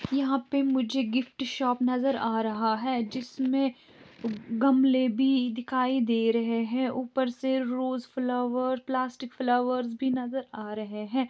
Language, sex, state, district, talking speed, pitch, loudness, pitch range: Hindi, female, Chhattisgarh, Bilaspur, 145 wpm, 255 Hz, -28 LUFS, 240-265 Hz